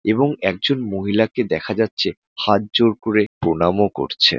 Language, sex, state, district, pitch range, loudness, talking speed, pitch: Bengali, male, West Bengal, Jalpaiguri, 100-115 Hz, -19 LUFS, 135 wpm, 110 Hz